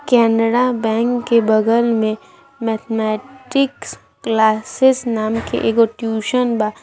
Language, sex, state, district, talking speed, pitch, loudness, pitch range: Bhojpuri, male, Bihar, Saran, 105 wpm, 230 Hz, -17 LUFS, 220-250 Hz